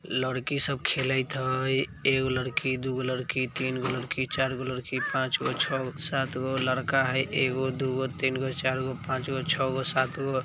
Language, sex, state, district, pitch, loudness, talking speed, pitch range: Maithili, male, Bihar, Vaishali, 130 Hz, -28 LUFS, 210 wpm, 130-135 Hz